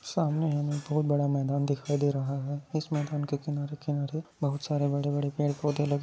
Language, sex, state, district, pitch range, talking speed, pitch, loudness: Hindi, male, Maharashtra, Nagpur, 145-150 Hz, 190 wpm, 145 Hz, -30 LUFS